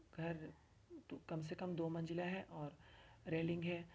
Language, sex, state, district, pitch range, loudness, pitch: Hindi, female, Uttar Pradesh, Varanasi, 160-175 Hz, -46 LUFS, 165 Hz